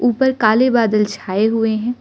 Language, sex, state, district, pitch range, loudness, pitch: Hindi, female, Arunachal Pradesh, Lower Dibang Valley, 215-245 Hz, -16 LUFS, 225 Hz